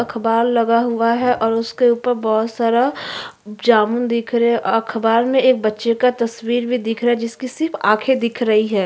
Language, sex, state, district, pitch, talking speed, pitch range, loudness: Hindi, female, Uttarakhand, Tehri Garhwal, 235 Hz, 195 wpm, 225-245 Hz, -17 LUFS